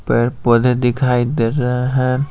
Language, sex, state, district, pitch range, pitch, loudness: Hindi, male, Bihar, Patna, 120-130 Hz, 125 Hz, -16 LUFS